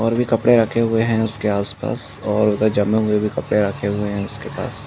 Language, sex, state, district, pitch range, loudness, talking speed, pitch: Hindi, male, Uttar Pradesh, Muzaffarnagar, 105-115 Hz, -19 LUFS, 235 wpm, 110 Hz